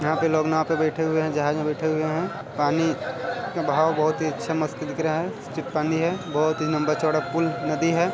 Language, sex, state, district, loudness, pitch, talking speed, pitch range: Hindi, male, Chhattisgarh, Balrampur, -24 LUFS, 155 Hz, 245 wpm, 155-165 Hz